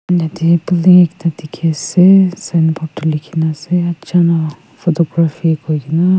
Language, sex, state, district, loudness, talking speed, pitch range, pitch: Nagamese, female, Nagaland, Kohima, -14 LUFS, 135 wpm, 160-175 Hz, 165 Hz